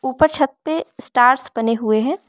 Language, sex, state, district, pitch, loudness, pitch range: Hindi, female, Arunachal Pradesh, Lower Dibang Valley, 260 Hz, -18 LUFS, 230-315 Hz